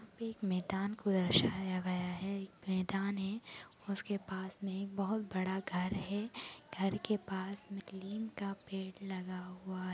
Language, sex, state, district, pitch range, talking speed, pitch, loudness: Hindi, female, Bihar, Jahanabad, 185-200 Hz, 165 wpm, 195 Hz, -38 LUFS